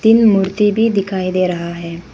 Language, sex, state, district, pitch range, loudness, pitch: Hindi, female, Arunachal Pradesh, Papum Pare, 180-210 Hz, -15 LUFS, 190 Hz